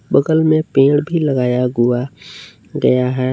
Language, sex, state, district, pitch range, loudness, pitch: Hindi, male, Jharkhand, Palamu, 125-155 Hz, -15 LUFS, 130 Hz